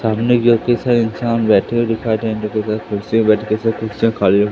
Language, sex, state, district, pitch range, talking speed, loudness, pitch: Hindi, male, Madhya Pradesh, Katni, 110-115 Hz, 200 wpm, -16 LUFS, 110 Hz